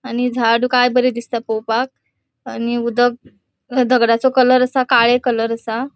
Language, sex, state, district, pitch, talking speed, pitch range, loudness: Konkani, female, Goa, North and South Goa, 245 Hz, 150 wpm, 235-255 Hz, -16 LUFS